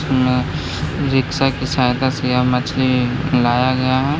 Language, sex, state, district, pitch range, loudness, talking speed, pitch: Hindi, male, Bihar, Gaya, 125-135 Hz, -17 LUFS, 130 wpm, 130 Hz